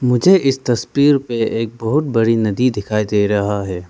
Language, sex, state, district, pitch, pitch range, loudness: Hindi, male, Arunachal Pradesh, Lower Dibang Valley, 115 Hz, 105-130 Hz, -16 LUFS